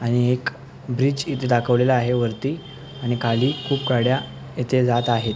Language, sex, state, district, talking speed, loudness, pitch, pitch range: Marathi, male, Maharashtra, Sindhudurg, 155 wpm, -21 LUFS, 125 Hz, 120-135 Hz